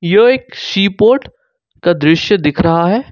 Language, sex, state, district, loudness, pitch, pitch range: Hindi, male, Jharkhand, Ranchi, -12 LUFS, 200 Hz, 170-240 Hz